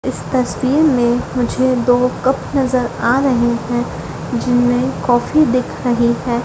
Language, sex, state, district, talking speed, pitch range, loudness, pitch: Hindi, female, Madhya Pradesh, Dhar, 140 wpm, 240-255 Hz, -16 LUFS, 245 Hz